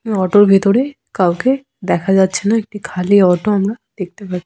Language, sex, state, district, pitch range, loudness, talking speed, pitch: Bengali, female, West Bengal, Jhargram, 185-215 Hz, -15 LUFS, 190 wpm, 200 Hz